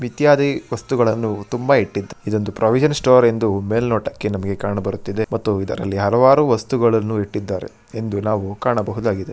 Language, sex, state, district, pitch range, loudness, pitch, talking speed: Kannada, male, Karnataka, Shimoga, 100-125 Hz, -19 LUFS, 110 Hz, 110 wpm